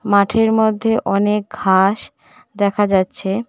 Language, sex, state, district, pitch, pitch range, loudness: Bengali, female, West Bengal, Cooch Behar, 205 Hz, 200-220 Hz, -16 LUFS